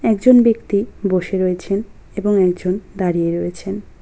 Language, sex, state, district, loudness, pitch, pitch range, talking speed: Bengali, female, West Bengal, Cooch Behar, -18 LUFS, 195 Hz, 180-205 Hz, 120 wpm